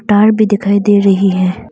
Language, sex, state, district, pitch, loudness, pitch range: Hindi, female, Arunachal Pradesh, Longding, 200 Hz, -11 LUFS, 195-205 Hz